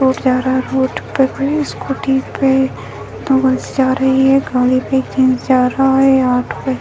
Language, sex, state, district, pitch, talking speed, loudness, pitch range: Hindi, female, Bihar, Bhagalpur, 265 Hz, 235 wpm, -15 LUFS, 255-270 Hz